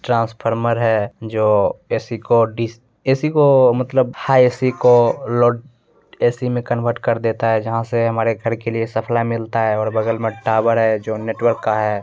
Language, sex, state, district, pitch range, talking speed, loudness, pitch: Hindi, male, Bihar, Begusarai, 110-120 Hz, 185 wpm, -18 LUFS, 115 Hz